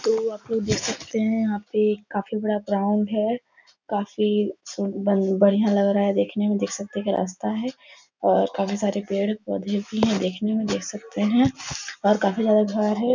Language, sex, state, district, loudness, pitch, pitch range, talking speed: Hindi, female, Uttar Pradesh, Etah, -23 LUFS, 210 Hz, 200-220 Hz, 190 wpm